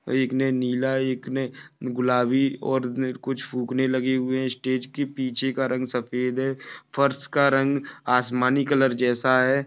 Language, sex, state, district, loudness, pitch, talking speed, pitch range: Hindi, male, Maharashtra, Chandrapur, -24 LUFS, 130 Hz, 160 wpm, 125-135 Hz